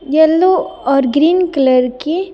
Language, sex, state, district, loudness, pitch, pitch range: Hindi, female, Bihar, Patna, -13 LUFS, 310 Hz, 270-350 Hz